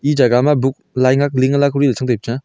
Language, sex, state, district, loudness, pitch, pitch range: Wancho, male, Arunachal Pradesh, Longding, -15 LUFS, 130 Hz, 130-140 Hz